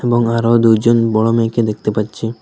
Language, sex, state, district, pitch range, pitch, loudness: Bengali, male, Assam, Hailakandi, 110-115 Hz, 115 Hz, -14 LUFS